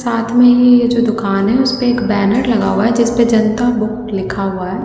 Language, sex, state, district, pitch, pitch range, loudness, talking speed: Hindi, female, Delhi, New Delhi, 230 Hz, 210-245 Hz, -13 LUFS, 245 wpm